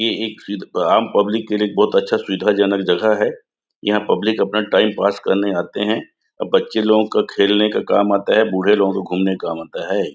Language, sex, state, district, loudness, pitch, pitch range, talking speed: Hindi, male, Chhattisgarh, Raigarh, -17 LUFS, 105 Hz, 95-110 Hz, 225 wpm